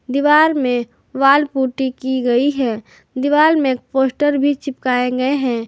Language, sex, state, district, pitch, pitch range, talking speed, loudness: Hindi, female, Jharkhand, Garhwa, 265 Hz, 250-285 Hz, 150 wpm, -16 LUFS